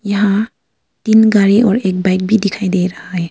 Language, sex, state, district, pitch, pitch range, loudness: Hindi, female, Arunachal Pradesh, Lower Dibang Valley, 200 Hz, 185-215 Hz, -13 LUFS